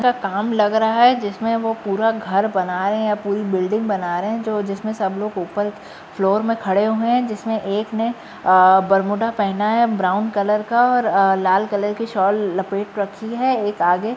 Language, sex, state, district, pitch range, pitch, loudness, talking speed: Hindi, female, Uttar Pradesh, Jyotiba Phule Nagar, 195-225 Hz, 210 Hz, -19 LUFS, 205 wpm